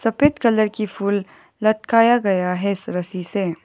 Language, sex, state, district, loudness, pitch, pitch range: Hindi, female, Arunachal Pradesh, Lower Dibang Valley, -20 LUFS, 205 Hz, 190-230 Hz